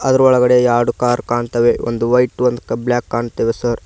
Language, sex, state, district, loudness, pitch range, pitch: Kannada, male, Karnataka, Koppal, -15 LUFS, 120-125 Hz, 120 Hz